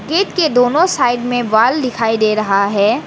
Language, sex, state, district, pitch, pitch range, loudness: Hindi, female, Arunachal Pradesh, Lower Dibang Valley, 245 Hz, 215-300 Hz, -14 LUFS